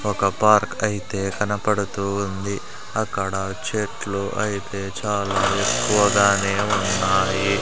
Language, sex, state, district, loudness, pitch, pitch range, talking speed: Telugu, male, Andhra Pradesh, Sri Satya Sai, -21 LUFS, 100 Hz, 95-105 Hz, 85 wpm